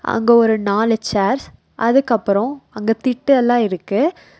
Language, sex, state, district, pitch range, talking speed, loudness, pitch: Tamil, female, Tamil Nadu, Nilgiris, 215-255 Hz, 125 wpm, -17 LUFS, 230 Hz